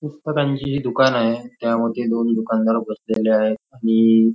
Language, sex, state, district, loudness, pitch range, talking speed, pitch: Marathi, male, Maharashtra, Nagpur, -19 LUFS, 115-130 Hz, 150 wpm, 115 Hz